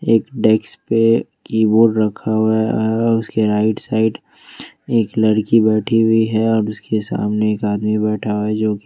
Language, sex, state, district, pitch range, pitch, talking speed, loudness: Hindi, male, Jharkhand, Ranchi, 105-115 Hz, 110 Hz, 165 wpm, -17 LUFS